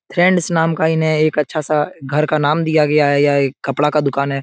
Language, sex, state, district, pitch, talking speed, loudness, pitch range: Hindi, male, Bihar, Supaul, 150 Hz, 285 wpm, -16 LUFS, 145-160 Hz